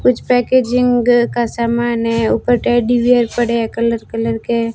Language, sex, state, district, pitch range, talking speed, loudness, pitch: Hindi, female, Rajasthan, Bikaner, 230-245 Hz, 175 wpm, -15 LUFS, 240 Hz